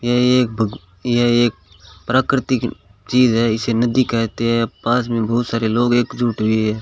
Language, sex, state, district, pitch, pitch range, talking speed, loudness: Hindi, male, Rajasthan, Bikaner, 115 Hz, 110-120 Hz, 175 wpm, -18 LUFS